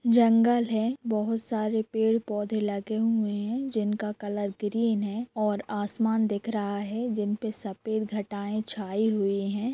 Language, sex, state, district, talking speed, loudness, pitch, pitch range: Hindi, female, Jharkhand, Sahebganj, 155 wpm, -28 LUFS, 215 Hz, 205-225 Hz